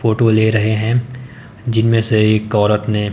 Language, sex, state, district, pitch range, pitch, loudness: Hindi, male, Himachal Pradesh, Shimla, 110-115 Hz, 110 Hz, -15 LUFS